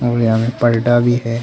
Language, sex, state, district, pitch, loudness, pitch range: Hindi, male, Arunachal Pradesh, Longding, 120 Hz, -15 LUFS, 115-120 Hz